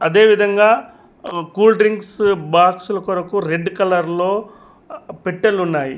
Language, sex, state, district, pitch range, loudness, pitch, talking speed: Telugu, male, Telangana, Mahabubabad, 180-210 Hz, -16 LUFS, 195 Hz, 120 wpm